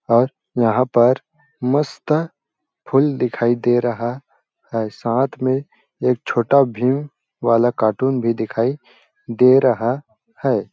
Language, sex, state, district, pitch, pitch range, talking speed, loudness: Hindi, male, Chhattisgarh, Balrampur, 125 Hz, 120-135 Hz, 125 wpm, -19 LUFS